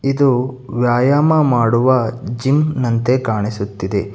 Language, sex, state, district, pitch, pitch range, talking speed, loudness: Kannada, male, Karnataka, Bangalore, 125 Hz, 115-135 Hz, 85 wpm, -16 LUFS